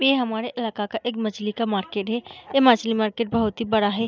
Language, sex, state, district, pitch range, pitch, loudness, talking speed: Hindi, female, Bihar, Darbhanga, 215-235 Hz, 225 Hz, -23 LUFS, 265 wpm